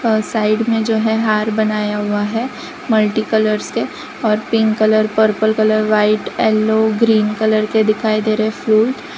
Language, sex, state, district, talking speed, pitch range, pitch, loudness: Hindi, female, Gujarat, Valsad, 170 wpm, 215-220 Hz, 215 Hz, -16 LUFS